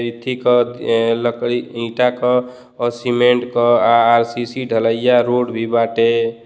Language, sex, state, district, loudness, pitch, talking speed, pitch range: Bhojpuri, male, Uttar Pradesh, Deoria, -16 LUFS, 120 Hz, 140 wpm, 115-125 Hz